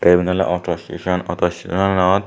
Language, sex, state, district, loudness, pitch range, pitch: Chakma, male, Tripura, Dhalai, -19 LUFS, 90-95 Hz, 90 Hz